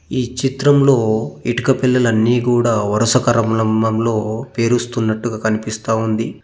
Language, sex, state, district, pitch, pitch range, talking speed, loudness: Telugu, male, Telangana, Mahabubabad, 115 Hz, 110-125 Hz, 85 wpm, -16 LUFS